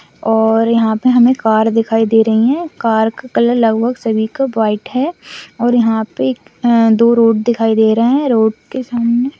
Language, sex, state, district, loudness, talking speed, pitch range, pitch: Hindi, female, West Bengal, Dakshin Dinajpur, -13 LUFS, 185 wpm, 220-245 Hz, 230 Hz